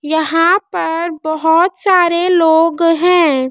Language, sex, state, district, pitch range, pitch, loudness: Hindi, female, Madhya Pradesh, Dhar, 320-350 Hz, 335 Hz, -13 LUFS